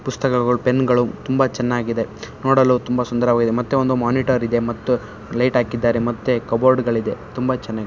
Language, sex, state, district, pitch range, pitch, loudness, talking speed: Kannada, male, Karnataka, Shimoga, 115-130 Hz, 120 Hz, -19 LUFS, 145 wpm